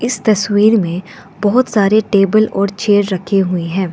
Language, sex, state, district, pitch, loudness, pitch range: Hindi, female, Arunachal Pradesh, Lower Dibang Valley, 205 Hz, -14 LUFS, 190-215 Hz